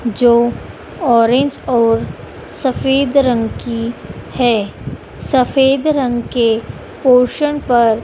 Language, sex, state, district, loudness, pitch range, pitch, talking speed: Hindi, female, Madhya Pradesh, Dhar, -15 LUFS, 235-270 Hz, 245 Hz, 90 wpm